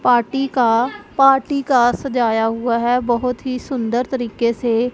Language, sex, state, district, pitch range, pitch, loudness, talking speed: Hindi, female, Punjab, Pathankot, 235-260 Hz, 245 Hz, -18 LUFS, 145 wpm